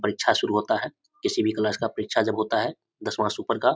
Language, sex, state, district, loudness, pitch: Hindi, male, Bihar, Samastipur, -26 LUFS, 115 Hz